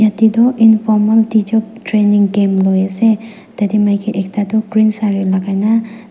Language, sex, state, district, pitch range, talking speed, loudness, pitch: Nagamese, female, Nagaland, Dimapur, 205-220 Hz, 140 wpm, -13 LUFS, 215 Hz